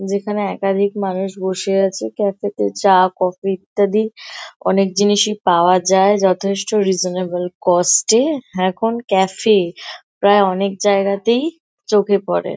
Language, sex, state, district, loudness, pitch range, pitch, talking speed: Bengali, female, West Bengal, Kolkata, -16 LUFS, 185-205 Hz, 195 Hz, 140 wpm